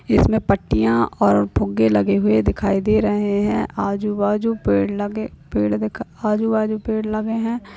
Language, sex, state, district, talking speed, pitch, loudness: Hindi, female, Uttar Pradesh, Etah, 155 wpm, 205 Hz, -19 LUFS